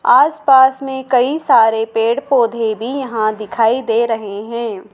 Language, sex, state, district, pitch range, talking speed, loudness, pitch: Hindi, female, Madhya Pradesh, Dhar, 225-265 Hz, 160 wpm, -15 LUFS, 235 Hz